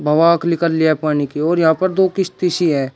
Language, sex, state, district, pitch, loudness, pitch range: Hindi, male, Uttar Pradesh, Shamli, 165 Hz, -16 LUFS, 155-180 Hz